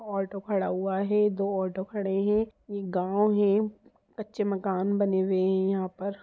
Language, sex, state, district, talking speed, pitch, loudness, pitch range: Hindi, female, Bihar, Sitamarhi, 175 wpm, 200 Hz, -27 LUFS, 190-210 Hz